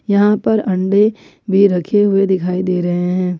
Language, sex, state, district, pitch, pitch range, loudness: Hindi, female, Jharkhand, Ranchi, 195 Hz, 180-205 Hz, -15 LUFS